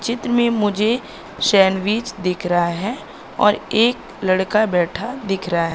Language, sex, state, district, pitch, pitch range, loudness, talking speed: Hindi, female, Madhya Pradesh, Katni, 210 Hz, 185-235 Hz, -19 LUFS, 135 wpm